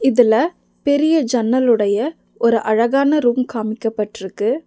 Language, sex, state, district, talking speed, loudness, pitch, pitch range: Tamil, female, Tamil Nadu, Nilgiris, 90 wpm, -17 LUFS, 240 Hz, 220-280 Hz